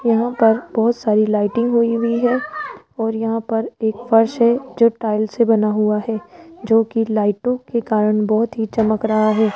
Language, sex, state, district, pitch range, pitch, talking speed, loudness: Hindi, female, Rajasthan, Jaipur, 215-235 Hz, 225 Hz, 180 wpm, -18 LUFS